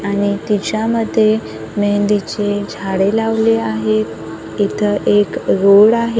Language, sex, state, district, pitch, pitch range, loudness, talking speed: Marathi, female, Maharashtra, Gondia, 205 Hz, 195-220 Hz, -15 LUFS, 95 wpm